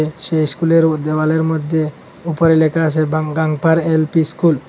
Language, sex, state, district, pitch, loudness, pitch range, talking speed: Bengali, male, Assam, Hailakandi, 160 Hz, -16 LUFS, 155-165 Hz, 165 wpm